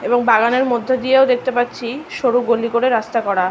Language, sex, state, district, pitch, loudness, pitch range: Bengali, female, West Bengal, North 24 Parganas, 245 Hz, -17 LUFS, 235-255 Hz